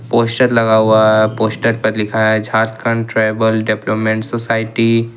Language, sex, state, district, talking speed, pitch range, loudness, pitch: Hindi, male, Jharkhand, Ranchi, 150 wpm, 110-115 Hz, -14 LUFS, 110 Hz